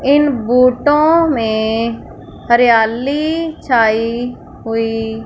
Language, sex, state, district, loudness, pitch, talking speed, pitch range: Hindi, male, Punjab, Fazilka, -14 LUFS, 240 Hz, 70 wpm, 225-285 Hz